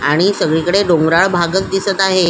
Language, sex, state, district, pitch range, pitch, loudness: Marathi, female, Maharashtra, Solapur, 165-195 Hz, 185 Hz, -14 LUFS